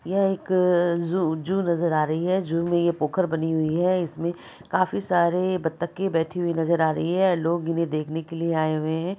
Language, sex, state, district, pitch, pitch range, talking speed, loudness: Maithili, male, Bihar, Supaul, 170 Hz, 160-180 Hz, 215 wpm, -24 LUFS